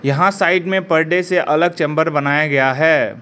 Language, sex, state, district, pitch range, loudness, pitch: Hindi, male, Arunachal Pradesh, Lower Dibang Valley, 145-180 Hz, -15 LUFS, 160 Hz